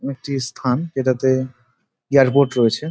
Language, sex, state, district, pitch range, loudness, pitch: Bengali, male, West Bengal, Dakshin Dinajpur, 125-140 Hz, -19 LUFS, 130 Hz